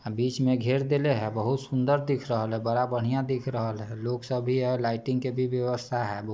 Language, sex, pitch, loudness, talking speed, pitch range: Bajjika, male, 125 Hz, -28 LUFS, 245 wpm, 115-130 Hz